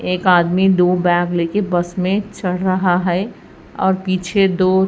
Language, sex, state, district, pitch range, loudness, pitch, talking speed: Hindi, female, Bihar, Katihar, 180-190 Hz, -17 LUFS, 185 Hz, 160 wpm